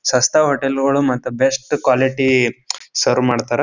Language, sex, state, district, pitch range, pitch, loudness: Kannada, male, Karnataka, Bijapur, 125-135 Hz, 130 Hz, -17 LUFS